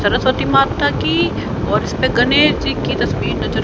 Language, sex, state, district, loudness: Hindi, female, Haryana, Rohtak, -16 LUFS